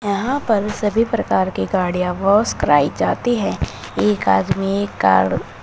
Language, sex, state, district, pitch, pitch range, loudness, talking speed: Hindi, female, Uttar Pradesh, Shamli, 195 Hz, 140-210 Hz, -18 LUFS, 150 wpm